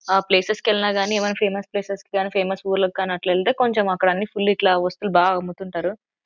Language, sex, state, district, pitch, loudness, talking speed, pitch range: Telugu, female, Andhra Pradesh, Anantapur, 195 Hz, -21 LUFS, 210 wpm, 185-205 Hz